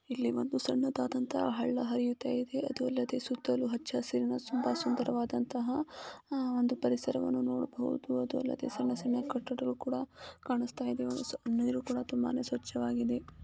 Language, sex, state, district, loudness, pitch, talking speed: Kannada, female, Karnataka, Gulbarga, -34 LUFS, 250 Hz, 120 wpm